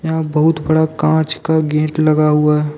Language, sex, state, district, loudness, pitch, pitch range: Hindi, male, Jharkhand, Deoghar, -15 LUFS, 155 Hz, 150-160 Hz